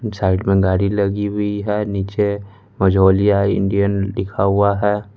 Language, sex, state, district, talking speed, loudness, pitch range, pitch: Hindi, male, Bihar, West Champaran, 140 wpm, -17 LUFS, 95-105 Hz, 100 Hz